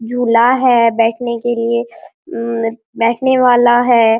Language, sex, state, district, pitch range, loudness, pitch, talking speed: Hindi, male, Bihar, Araria, 230-245 Hz, -13 LUFS, 235 Hz, 130 wpm